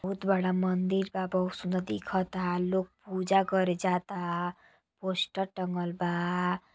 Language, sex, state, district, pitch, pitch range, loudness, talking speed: Bhojpuri, female, Uttar Pradesh, Gorakhpur, 185 Hz, 180-190 Hz, -30 LUFS, 125 wpm